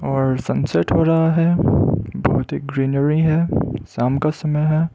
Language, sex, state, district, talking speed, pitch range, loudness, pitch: Hindi, male, Arunachal Pradesh, Lower Dibang Valley, 160 wpm, 130-160 Hz, -18 LUFS, 145 Hz